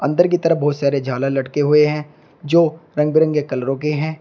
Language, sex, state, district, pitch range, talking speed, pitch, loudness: Hindi, male, Uttar Pradesh, Shamli, 140-160 Hz, 215 wpm, 150 Hz, -18 LUFS